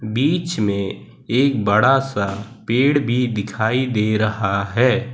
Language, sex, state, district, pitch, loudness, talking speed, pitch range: Hindi, male, Gujarat, Valsad, 115 Hz, -19 LUFS, 130 wpm, 105-130 Hz